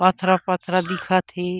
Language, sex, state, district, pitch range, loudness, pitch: Chhattisgarhi, female, Chhattisgarh, Korba, 180-185 Hz, -21 LUFS, 185 Hz